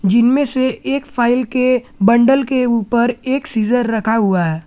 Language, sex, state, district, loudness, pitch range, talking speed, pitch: Hindi, male, Jharkhand, Garhwa, -15 LUFS, 225-260 Hz, 165 wpm, 245 Hz